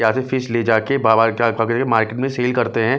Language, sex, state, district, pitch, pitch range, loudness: Hindi, male, Bihar, West Champaran, 115 Hz, 115-130 Hz, -18 LUFS